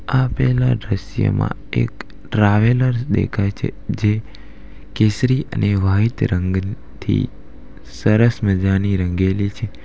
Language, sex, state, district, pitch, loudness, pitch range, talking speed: Gujarati, male, Gujarat, Valsad, 105 Hz, -19 LUFS, 95-120 Hz, 90 wpm